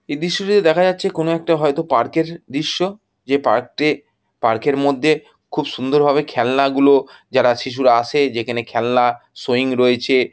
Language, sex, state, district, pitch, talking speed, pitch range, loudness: Bengali, male, West Bengal, Jhargram, 140 Hz, 165 wpm, 125-155 Hz, -17 LUFS